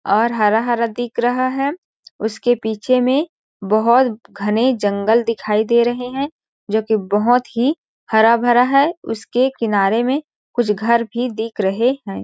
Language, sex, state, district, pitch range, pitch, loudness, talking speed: Hindi, female, Chhattisgarh, Balrampur, 220-255 Hz, 235 Hz, -17 LUFS, 150 wpm